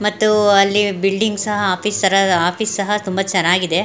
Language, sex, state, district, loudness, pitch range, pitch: Kannada, female, Karnataka, Mysore, -16 LUFS, 190-210 Hz, 200 Hz